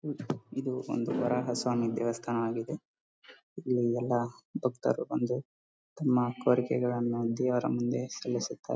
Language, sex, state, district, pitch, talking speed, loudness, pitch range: Kannada, male, Karnataka, Bellary, 120 Hz, 105 wpm, -31 LUFS, 115-125 Hz